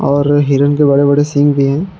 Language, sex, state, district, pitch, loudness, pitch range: Hindi, male, Jharkhand, Palamu, 145 Hz, -12 LUFS, 140-145 Hz